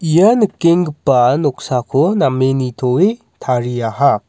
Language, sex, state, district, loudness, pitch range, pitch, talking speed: Garo, male, Meghalaya, West Garo Hills, -15 LUFS, 125-170 Hz, 140 Hz, 85 wpm